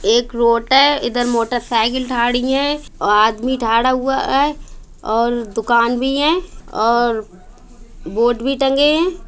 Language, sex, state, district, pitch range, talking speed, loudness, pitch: Bundeli, female, Uttar Pradesh, Budaun, 230-270 Hz, 115 wpm, -16 LUFS, 245 Hz